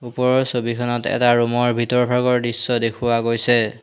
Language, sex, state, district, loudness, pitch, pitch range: Assamese, male, Assam, Hailakandi, -19 LUFS, 120 Hz, 120-125 Hz